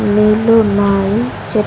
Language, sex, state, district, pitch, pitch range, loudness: Telugu, female, Andhra Pradesh, Sri Satya Sai, 210 Hz, 200-220 Hz, -13 LUFS